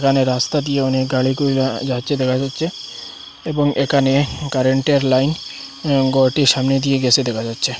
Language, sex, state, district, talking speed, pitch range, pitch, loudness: Bengali, male, Assam, Hailakandi, 155 wpm, 130-140 Hz, 135 Hz, -17 LUFS